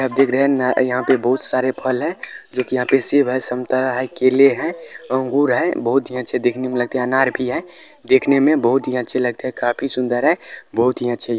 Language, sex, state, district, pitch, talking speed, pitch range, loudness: Hindi, male, Bihar, Araria, 130 Hz, 230 wpm, 125-130 Hz, -18 LUFS